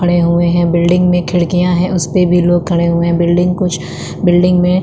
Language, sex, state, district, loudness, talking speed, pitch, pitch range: Hindi, female, Uttarakhand, Tehri Garhwal, -12 LUFS, 235 wpm, 175 Hz, 170-180 Hz